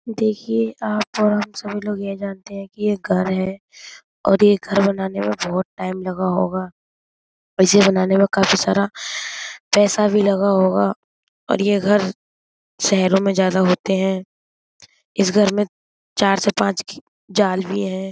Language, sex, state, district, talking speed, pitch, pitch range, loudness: Hindi, female, Uttar Pradesh, Budaun, 155 wpm, 195 Hz, 190-205 Hz, -19 LUFS